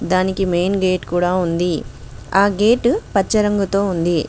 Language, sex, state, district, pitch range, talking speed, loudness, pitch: Telugu, female, Telangana, Mahabubabad, 175-200 Hz, 140 wpm, -17 LUFS, 185 Hz